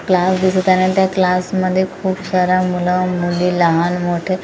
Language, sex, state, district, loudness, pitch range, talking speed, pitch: Marathi, female, Maharashtra, Gondia, -16 LUFS, 180-185 Hz, 175 wpm, 185 Hz